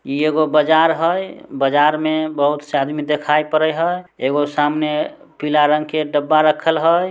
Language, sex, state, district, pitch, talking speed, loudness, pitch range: Maithili, male, Bihar, Samastipur, 155 Hz, 170 wpm, -17 LUFS, 150-155 Hz